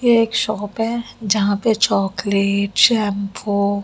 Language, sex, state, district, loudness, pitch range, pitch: Hindi, female, Delhi, New Delhi, -18 LUFS, 200-225 Hz, 205 Hz